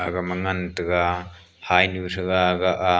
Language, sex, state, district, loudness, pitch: Wancho, male, Arunachal Pradesh, Longding, -22 LUFS, 90 Hz